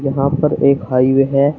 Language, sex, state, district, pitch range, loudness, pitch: Hindi, male, Uttar Pradesh, Shamli, 135-140 Hz, -14 LUFS, 140 Hz